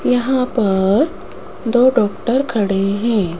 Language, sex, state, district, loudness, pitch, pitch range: Hindi, female, Rajasthan, Jaipur, -16 LUFS, 230 Hz, 200-250 Hz